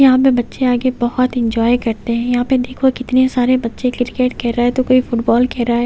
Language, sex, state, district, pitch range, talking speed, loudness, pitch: Hindi, female, Haryana, Jhajjar, 240-255 Hz, 245 wpm, -16 LUFS, 245 Hz